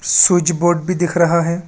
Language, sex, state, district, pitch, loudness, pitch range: Hindi, male, Assam, Kamrup Metropolitan, 170 Hz, -14 LUFS, 170-175 Hz